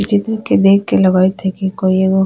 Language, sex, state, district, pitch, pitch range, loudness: Bajjika, female, Bihar, Vaishali, 190 Hz, 190-200 Hz, -14 LUFS